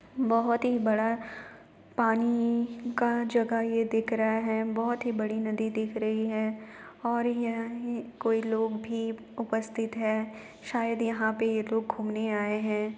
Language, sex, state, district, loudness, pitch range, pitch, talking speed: Hindi, female, Uttar Pradesh, Jalaun, -29 LUFS, 220-235 Hz, 225 Hz, 150 wpm